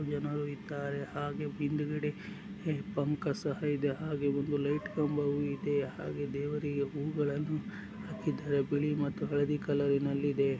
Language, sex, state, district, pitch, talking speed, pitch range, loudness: Kannada, male, Karnataka, Dakshina Kannada, 145 Hz, 120 wpm, 145-150 Hz, -34 LUFS